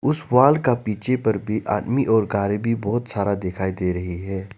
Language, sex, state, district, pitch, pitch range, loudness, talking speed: Hindi, male, Arunachal Pradesh, Lower Dibang Valley, 105 Hz, 100-120 Hz, -21 LUFS, 210 wpm